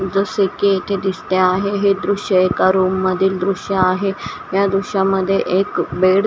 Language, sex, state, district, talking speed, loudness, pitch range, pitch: Marathi, female, Maharashtra, Washim, 160 wpm, -17 LUFS, 185-200 Hz, 190 Hz